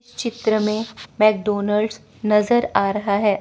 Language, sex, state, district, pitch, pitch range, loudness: Hindi, female, Chandigarh, Chandigarh, 215 Hz, 210-220 Hz, -20 LUFS